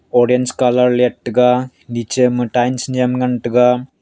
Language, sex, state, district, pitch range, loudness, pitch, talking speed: Wancho, male, Arunachal Pradesh, Longding, 120-125 Hz, -15 LUFS, 125 Hz, 105 wpm